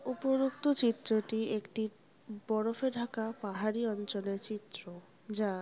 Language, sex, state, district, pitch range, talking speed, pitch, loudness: Bengali, female, West Bengal, North 24 Parganas, 205-235 Hz, 105 wpm, 220 Hz, -34 LUFS